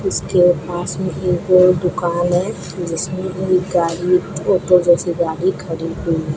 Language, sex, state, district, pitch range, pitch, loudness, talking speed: Hindi, female, Rajasthan, Bikaner, 170-185 Hz, 180 Hz, -17 LUFS, 140 wpm